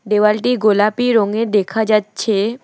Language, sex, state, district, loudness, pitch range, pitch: Bengali, female, West Bengal, Alipurduar, -16 LUFS, 210-225 Hz, 215 Hz